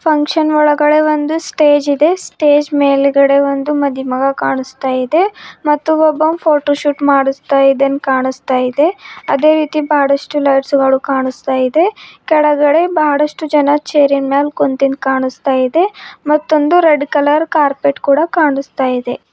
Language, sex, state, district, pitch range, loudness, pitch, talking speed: Kannada, female, Karnataka, Bidar, 275-305 Hz, -13 LUFS, 290 Hz, 115 wpm